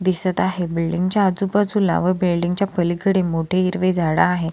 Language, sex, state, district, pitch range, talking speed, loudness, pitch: Marathi, female, Maharashtra, Solapur, 175-190 Hz, 170 wpm, -19 LUFS, 185 Hz